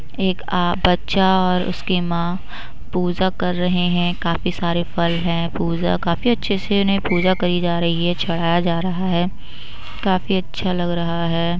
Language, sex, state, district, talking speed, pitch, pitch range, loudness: Hindi, female, Uttar Pradesh, Budaun, 175 wpm, 175 Hz, 170-185 Hz, -20 LUFS